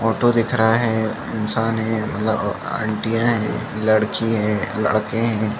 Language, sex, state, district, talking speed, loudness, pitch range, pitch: Hindi, male, Chhattisgarh, Rajnandgaon, 150 wpm, -20 LUFS, 110-115 Hz, 110 Hz